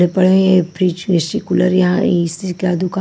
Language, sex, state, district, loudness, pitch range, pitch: Hindi, female, Bihar, Kaimur, -15 LUFS, 175-185 Hz, 185 Hz